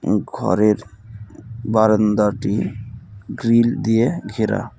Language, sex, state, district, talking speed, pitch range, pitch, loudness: Bengali, male, West Bengal, Cooch Behar, 65 wpm, 105-115 Hz, 110 Hz, -19 LUFS